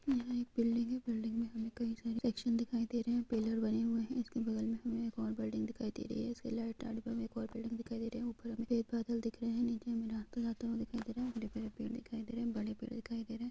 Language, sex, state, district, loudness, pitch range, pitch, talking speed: Hindi, female, Jharkhand, Jamtara, -39 LUFS, 230-235 Hz, 230 Hz, 225 wpm